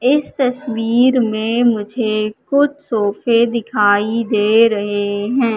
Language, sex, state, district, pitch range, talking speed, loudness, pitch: Hindi, female, Madhya Pradesh, Katni, 215-250 Hz, 105 wpm, -16 LUFS, 230 Hz